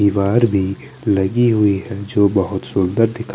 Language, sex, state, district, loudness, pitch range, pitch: Hindi, male, Chandigarh, Chandigarh, -17 LUFS, 100-115 Hz, 100 Hz